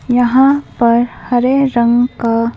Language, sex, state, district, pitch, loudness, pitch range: Hindi, female, Madhya Pradesh, Bhopal, 245 Hz, -13 LUFS, 235-255 Hz